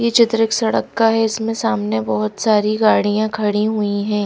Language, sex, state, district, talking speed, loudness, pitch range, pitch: Hindi, female, Haryana, Rohtak, 195 wpm, -17 LUFS, 205-225 Hz, 215 Hz